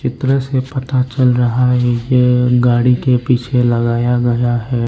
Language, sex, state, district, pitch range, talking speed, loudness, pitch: Hindi, male, Arunachal Pradesh, Lower Dibang Valley, 120-130 Hz, 160 wpm, -14 LUFS, 125 Hz